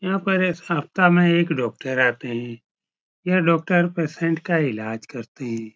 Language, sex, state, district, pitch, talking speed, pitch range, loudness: Hindi, male, Uttar Pradesh, Etah, 165 Hz, 165 wpm, 120-175 Hz, -21 LUFS